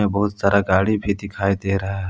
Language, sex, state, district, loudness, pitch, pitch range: Hindi, male, Jharkhand, Palamu, -20 LUFS, 100 Hz, 95-100 Hz